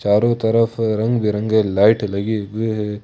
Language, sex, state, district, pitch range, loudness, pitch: Hindi, male, Jharkhand, Ranchi, 105-110 Hz, -18 LUFS, 110 Hz